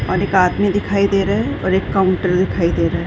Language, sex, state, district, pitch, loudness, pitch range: Hindi, female, Chhattisgarh, Bilaspur, 190 Hz, -17 LUFS, 180-200 Hz